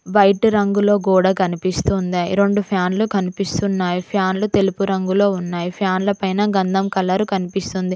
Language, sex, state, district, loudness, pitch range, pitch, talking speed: Telugu, female, Telangana, Mahabubabad, -18 LUFS, 185-200 Hz, 195 Hz, 120 wpm